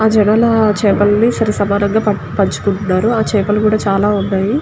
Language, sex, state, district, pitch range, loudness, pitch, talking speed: Telugu, female, Andhra Pradesh, Guntur, 200-220 Hz, -14 LUFS, 210 Hz, 130 wpm